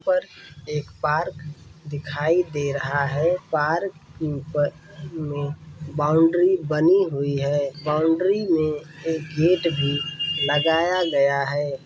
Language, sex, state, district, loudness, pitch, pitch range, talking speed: Hindi, male, Bihar, Saran, -22 LUFS, 150 Hz, 145-165 Hz, 110 wpm